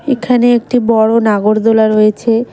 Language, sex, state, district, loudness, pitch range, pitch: Bengali, female, West Bengal, Cooch Behar, -11 LUFS, 215-240 Hz, 230 Hz